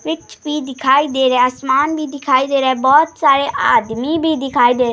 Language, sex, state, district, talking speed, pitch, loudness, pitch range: Hindi, female, Bihar, Bhagalpur, 255 wpm, 270 Hz, -15 LUFS, 255-295 Hz